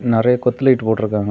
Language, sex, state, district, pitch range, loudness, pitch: Tamil, male, Tamil Nadu, Kanyakumari, 110-125 Hz, -16 LUFS, 115 Hz